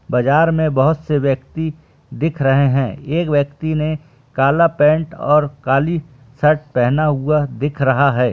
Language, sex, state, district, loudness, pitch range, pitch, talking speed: Hindi, male, Chhattisgarh, Bilaspur, -17 LUFS, 135-155 Hz, 145 Hz, 150 wpm